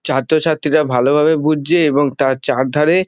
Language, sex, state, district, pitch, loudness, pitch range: Bengali, male, West Bengal, Dakshin Dinajpur, 150 Hz, -15 LUFS, 135-155 Hz